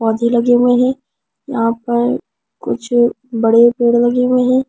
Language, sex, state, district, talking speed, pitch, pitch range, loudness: Hindi, female, Delhi, New Delhi, 155 wpm, 240 Hz, 235-250 Hz, -14 LUFS